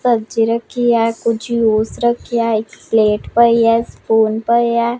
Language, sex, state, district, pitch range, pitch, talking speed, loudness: Punjabi, female, Punjab, Pathankot, 225-235 Hz, 230 Hz, 155 wpm, -15 LUFS